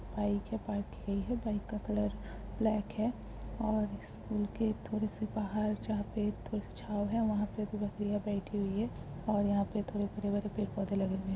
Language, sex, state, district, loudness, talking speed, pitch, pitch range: Hindi, female, Bihar, Jamui, -36 LUFS, 210 wpm, 210 Hz, 205-215 Hz